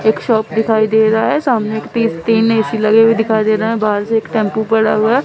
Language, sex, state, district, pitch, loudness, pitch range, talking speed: Hindi, female, Chandigarh, Chandigarh, 220 Hz, -14 LUFS, 215-225 Hz, 250 wpm